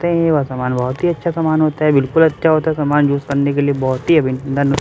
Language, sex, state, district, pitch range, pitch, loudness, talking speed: Hindi, male, Bihar, Katihar, 140-160 Hz, 145 Hz, -16 LUFS, 260 wpm